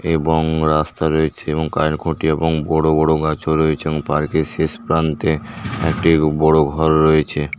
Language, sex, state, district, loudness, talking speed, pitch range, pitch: Bengali, male, West Bengal, Paschim Medinipur, -17 LUFS, 140 wpm, 75-80 Hz, 80 Hz